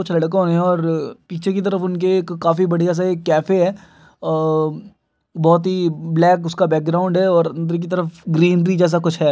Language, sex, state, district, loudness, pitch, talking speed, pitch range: Hindi, male, Uttar Pradesh, Gorakhpur, -18 LUFS, 175 Hz, 180 wpm, 165-185 Hz